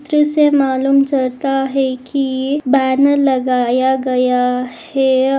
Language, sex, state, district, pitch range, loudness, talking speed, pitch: Hindi, female, Goa, North and South Goa, 255-275 Hz, -15 LUFS, 100 wpm, 265 Hz